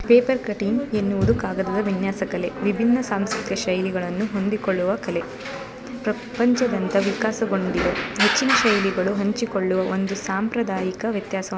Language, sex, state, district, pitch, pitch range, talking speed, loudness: Kannada, female, Karnataka, Shimoga, 205 Hz, 190-225 Hz, 105 wpm, -22 LUFS